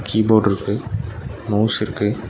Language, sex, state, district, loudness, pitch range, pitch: Tamil, male, Tamil Nadu, Nilgiris, -20 LUFS, 105-110 Hz, 110 Hz